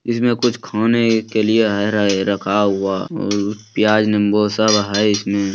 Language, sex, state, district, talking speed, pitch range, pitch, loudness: Hindi, male, Bihar, Bhagalpur, 160 wpm, 100-110 Hz, 105 Hz, -17 LUFS